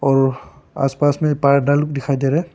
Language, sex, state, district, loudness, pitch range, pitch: Hindi, male, Arunachal Pradesh, Papum Pare, -17 LUFS, 135-145 Hz, 140 Hz